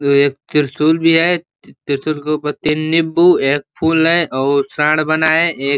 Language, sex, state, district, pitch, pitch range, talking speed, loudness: Hindi, male, Uttar Pradesh, Ghazipur, 155 Hz, 140-165 Hz, 195 wpm, -15 LUFS